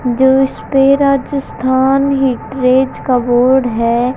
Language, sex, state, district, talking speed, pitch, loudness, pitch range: Hindi, male, Haryana, Charkhi Dadri, 100 wpm, 265 Hz, -13 LUFS, 250-270 Hz